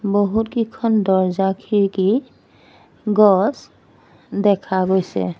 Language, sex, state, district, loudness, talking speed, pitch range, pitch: Assamese, female, Assam, Sonitpur, -18 LUFS, 65 wpm, 190-215 Hz, 200 Hz